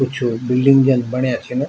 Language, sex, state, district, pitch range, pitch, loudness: Garhwali, male, Uttarakhand, Tehri Garhwal, 125-135 Hz, 125 Hz, -16 LUFS